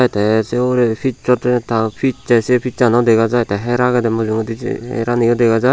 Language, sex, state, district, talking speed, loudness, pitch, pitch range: Chakma, male, Tripura, Unakoti, 220 wpm, -16 LUFS, 120 Hz, 115-125 Hz